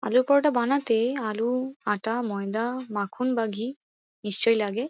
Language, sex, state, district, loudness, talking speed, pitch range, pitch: Bengali, female, West Bengal, Kolkata, -26 LUFS, 135 wpm, 215-255 Hz, 235 Hz